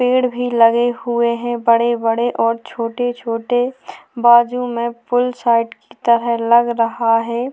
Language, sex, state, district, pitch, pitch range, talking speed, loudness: Hindi, female, Maharashtra, Aurangabad, 235 Hz, 230-245 Hz, 150 wpm, -16 LUFS